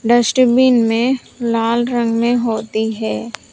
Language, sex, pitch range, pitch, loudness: Hindi, female, 225-245 Hz, 235 Hz, -16 LUFS